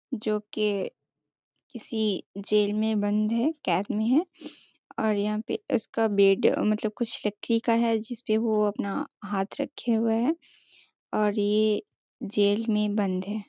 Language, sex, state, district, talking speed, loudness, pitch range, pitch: Hindi, female, Bihar, Sitamarhi, 145 wpm, -26 LUFS, 210-235 Hz, 215 Hz